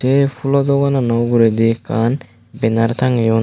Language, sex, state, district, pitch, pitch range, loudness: Chakma, male, Tripura, Dhalai, 120 Hz, 115-135 Hz, -16 LUFS